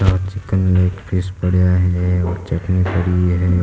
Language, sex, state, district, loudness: Rajasthani, male, Rajasthan, Nagaur, -17 LUFS